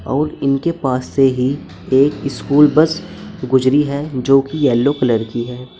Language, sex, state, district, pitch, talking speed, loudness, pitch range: Hindi, male, Uttar Pradesh, Saharanpur, 135 Hz, 165 wpm, -16 LUFS, 130-150 Hz